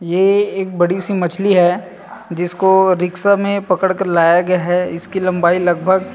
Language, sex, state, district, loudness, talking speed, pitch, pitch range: Hindi, male, Chhattisgarh, Rajnandgaon, -15 LUFS, 175 wpm, 185 Hz, 175-195 Hz